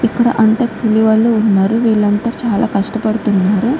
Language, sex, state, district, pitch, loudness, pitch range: Telugu, female, Andhra Pradesh, Guntur, 220 Hz, -13 LUFS, 210-230 Hz